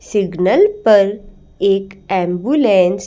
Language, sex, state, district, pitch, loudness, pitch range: Hindi, female, Madhya Pradesh, Bhopal, 195 Hz, -15 LUFS, 190-210 Hz